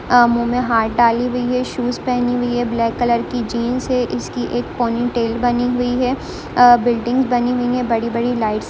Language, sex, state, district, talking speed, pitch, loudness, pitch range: Hindi, female, Bihar, Darbhanga, 215 wpm, 245 Hz, -17 LUFS, 235-245 Hz